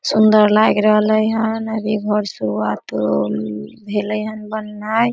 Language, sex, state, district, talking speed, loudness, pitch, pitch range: Maithili, female, Bihar, Samastipur, 115 wpm, -17 LUFS, 215 Hz, 205-215 Hz